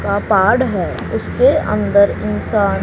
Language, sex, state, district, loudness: Hindi, male, Haryana, Charkhi Dadri, -15 LUFS